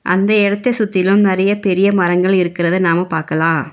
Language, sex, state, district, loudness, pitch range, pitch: Tamil, female, Tamil Nadu, Nilgiris, -14 LUFS, 175-200 Hz, 185 Hz